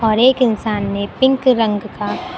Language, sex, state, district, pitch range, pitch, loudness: Hindi, female, Uttar Pradesh, Lucknow, 205-255 Hz, 220 Hz, -16 LUFS